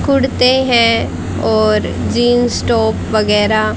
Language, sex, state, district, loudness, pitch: Hindi, female, Haryana, Charkhi Dadri, -13 LUFS, 215 Hz